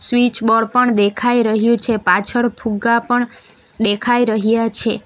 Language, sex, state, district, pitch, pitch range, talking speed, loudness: Gujarati, female, Gujarat, Valsad, 230 Hz, 220-240 Hz, 140 wpm, -16 LUFS